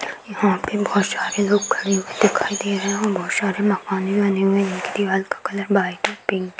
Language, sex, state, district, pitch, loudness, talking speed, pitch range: Hindi, female, Uttar Pradesh, Hamirpur, 200 Hz, -21 LUFS, 225 wpm, 190-205 Hz